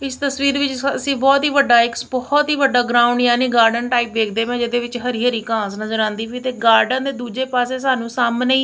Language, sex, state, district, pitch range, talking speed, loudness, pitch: Punjabi, female, Punjab, Kapurthala, 235-265 Hz, 230 wpm, -17 LUFS, 245 Hz